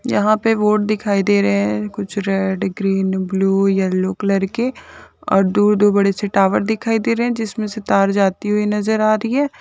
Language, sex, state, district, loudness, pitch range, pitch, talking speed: Hindi, female, Bihar, Saharsa, -17 LUFS, 195-215 Hz, 205 Hz, 195 wpm